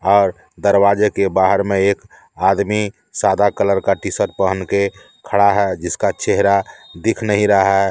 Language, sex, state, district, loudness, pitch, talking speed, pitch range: Hindi, male, Jharkhand, Deoghar, -16 LUFS, 100 Hz, 160 wpm, 95-100 Hz